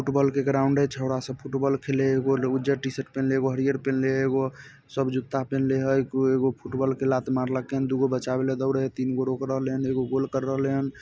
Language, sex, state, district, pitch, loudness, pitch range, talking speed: Maithili, male, Bihar, Samastipur, 135 Hz, -26 LUFS, 130-135 Hz, 235 wpm